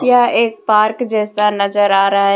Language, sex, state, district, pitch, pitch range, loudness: Hindi, female, Jharkhand, Deoghar, 210 Hz, 200-225 Hz, -14 LUFS